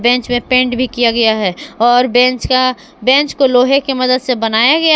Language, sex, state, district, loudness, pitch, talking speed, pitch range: Hindi, female, Jharkhand, Palamu, -12 LUFS, 255 Hz, 215 wpm, 240-260 Hz